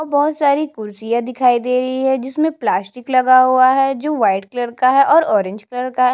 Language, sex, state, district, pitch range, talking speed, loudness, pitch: Hindi, female, Chhattisgarh, Jashpur, 245-275 Hz, 225 wpm, -16 LUFS, 255 Hz